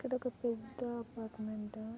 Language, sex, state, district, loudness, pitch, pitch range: Telugu, female, Andhra Pradesh, Krishna, -41 LUFS, 230 Hz, 220-245 Hz